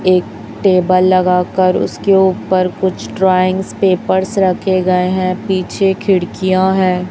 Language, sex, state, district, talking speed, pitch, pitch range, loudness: Hindi, female, Chhattisgarh, Raipur, 125 wpm, 185 Hz, 185-190 Hz, -14 LUFS